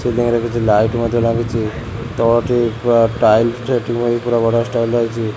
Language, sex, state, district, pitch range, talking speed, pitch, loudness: Odia, male, Odisha, Khordha, 115-120 Hz, 170 wpm, 115 Hz, -16 LUFS